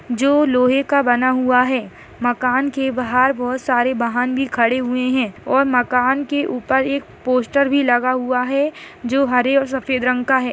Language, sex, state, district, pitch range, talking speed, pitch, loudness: Hindi, female, Chhattisgarh, Rajnandgaon, 250-270 Hz, 190 wpm, 255 Hz, -18 LUFS